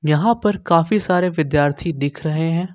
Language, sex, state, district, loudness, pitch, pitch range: Hindi, male, Jharkhand, Ranchi, -18 LUFS, 165 Hz, 150-180 Hz